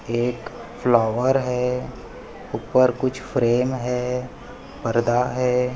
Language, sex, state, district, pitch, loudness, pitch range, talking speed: Hindi, male, Maharashtra, Chandrapur, 125 Hz, -22 LUFS, 120-125 Hz, 95 wpm